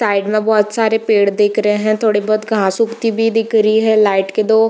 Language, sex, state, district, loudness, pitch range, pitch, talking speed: Hindi, female, Bihar, Jamui, -14 LUFS, 210-225 Hz, 215 Hz, 255 wpm